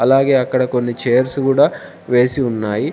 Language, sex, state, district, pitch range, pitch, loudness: Telugu, male, Telangana, Komaram Bheem, 120-135 Hz, 125 Hz, -16 LUFS